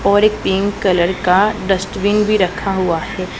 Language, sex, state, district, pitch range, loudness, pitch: Hindi, female, Punjab, Pathankot, 185-205 Hz, -16 LUFS, 195 Hz